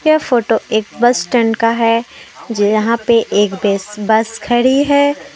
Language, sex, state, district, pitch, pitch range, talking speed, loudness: Hindi, female, Jharkhand, Deoghar, 230 Hz, 220-255 Hz, 155 wpm, -14 LUFS